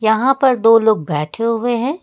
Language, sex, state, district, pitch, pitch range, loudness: Hindi, female, Uttar Pradesh, Lucknow, 230 Hz, 220-255 Hz, -15 LUFS